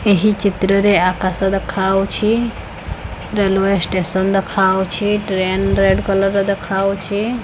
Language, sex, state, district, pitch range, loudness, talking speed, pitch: Odia, female, Odisha, Khordha, 190-200 Hz, -16 LUFS, 105 wpm, 195 Hz